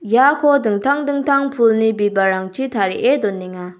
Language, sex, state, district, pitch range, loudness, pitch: Garo, female, Meghalaya, South Garo Hills, 195-275 Hz, -16 LUFS, 220 Hz